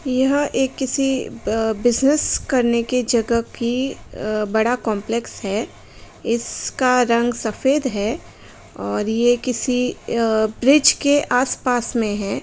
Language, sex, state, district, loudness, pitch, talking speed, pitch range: Hindi, female, Bihar, Bhagalpur, -19 LUFS, 240 Hz, 125 wpm, 220-260 Hz